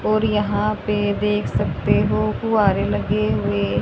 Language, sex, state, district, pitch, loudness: Hindi, female, Haryana, Charkhi Dadri, 205 Hz, -20 LUFS